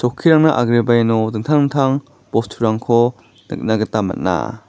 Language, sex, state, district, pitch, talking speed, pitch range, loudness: Garo, male, Meghalaya, West Garo Hills, 120 Hz, 115 wpm, 110-135 Hz, -16 LUFS